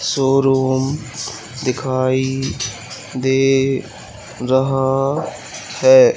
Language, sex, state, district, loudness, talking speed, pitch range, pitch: Hindi, male, Madhya Pradesh, Katni, -18 LUFS, 50 wpm, 130-135 Hz, 135 Hz